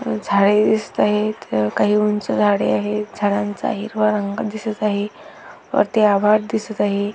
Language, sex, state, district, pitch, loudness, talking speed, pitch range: Marathi, female, Maharashtra, Aurangabad, 210 Hz, -19 LUFS, 125 wpm, 200-215 Hz